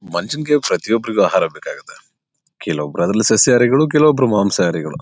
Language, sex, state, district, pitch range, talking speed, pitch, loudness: Kannada, male, Karnataka, Bellary, 110-150 Hz, 120 wpm, 120 Hz, -15 LUFS